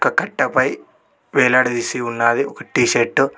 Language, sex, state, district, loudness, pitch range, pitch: Telugu, male, Telangana, Mahabubabad, -17 LUFS, 120-135 Hz, 125 Hz